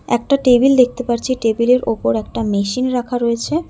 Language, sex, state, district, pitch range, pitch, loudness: Bengali, female, West Bengal, Alipurduar, 230-255 Hz, 245 Hz, -16 LUFS